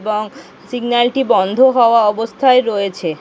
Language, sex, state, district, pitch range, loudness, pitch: Bengali, female, West Bengal, North 24 Parganas, 210-250 Hz, -14 LUFS, 230 Hz